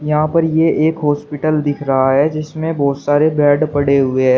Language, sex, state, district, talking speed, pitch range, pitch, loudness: Hindi, male, Uttar Pradesh, Shamli, 205 wpm, 140-155 Hz, 145 Hz, -15 LUFS